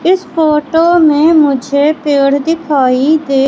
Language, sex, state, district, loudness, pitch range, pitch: Hindi, female, Madhya Pradesh, Katni, -11 LUFS, 280-325 Hz, 300 Hz